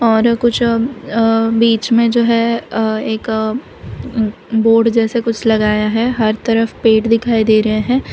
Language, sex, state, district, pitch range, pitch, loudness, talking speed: Hindi, female, Gujarat, Valsad, 220-235 Hz, 225 Hz, -14 LUFS, 160 wpm